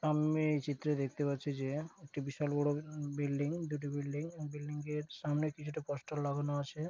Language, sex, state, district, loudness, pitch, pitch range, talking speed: Bengali, female, West Bengal, Dakshin Dinajpur, -37 LUFS, 145 Hz, 145-150 Hz, 175 wpm